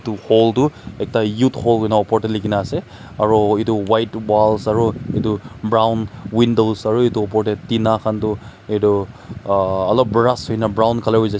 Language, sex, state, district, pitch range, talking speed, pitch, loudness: Nagamese, male, Nagaland, Kohima, 105-115 Hz, 185 wpm, 110 Hz, -17 LUFS